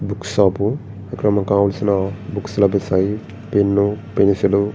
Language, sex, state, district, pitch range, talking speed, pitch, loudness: Telugu, male, Andhra Pradesh, Srikakulam, 100-105 Hz, 125 wpm, 100 Hz, -18 LUFS